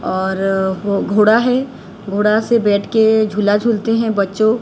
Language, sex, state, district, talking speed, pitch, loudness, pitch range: Hindi, female, Odisha, Sambalpur, 155 wpm, 210 Hz, -15 LUFS, 200-225 Hz